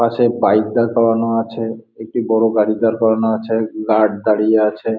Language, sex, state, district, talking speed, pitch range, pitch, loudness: Bengali, male, West Bengal, Jalpaiguri, 170 wpm, 110-115 Hz, 110 Hz, -16 LUFS